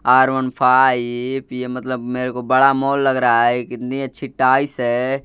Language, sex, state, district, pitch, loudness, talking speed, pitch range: Hindi, male, Bihar, Kaimur, 130 Hz, -18 LUFS, 185 wpm, 125-135 Hz